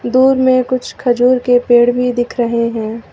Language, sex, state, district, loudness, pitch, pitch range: Hindi, female, Uttar Pradesh, Lucknow, -13 LUFS, 245 Hz, 240-255 Hz